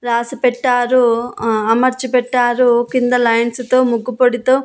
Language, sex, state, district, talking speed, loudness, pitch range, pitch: Telugu, female, Andhra Pradesh, Annamaya, 130 wpm, -15 LUFS, 235-255 Hz, 245 Hz